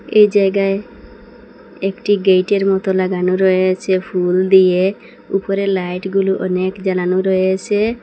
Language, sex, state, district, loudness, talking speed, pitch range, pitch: Bengali, female, Assam, Hailakandi, -16 LUFS, 120 wpm, 185-200 Hz, 190 Hz